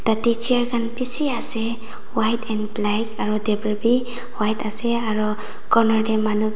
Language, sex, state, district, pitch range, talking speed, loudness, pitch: Nagamese, female, Nagaland, Dimapur, 215-235 Hz, 155 wpm, -20 LUFS, 220 Hz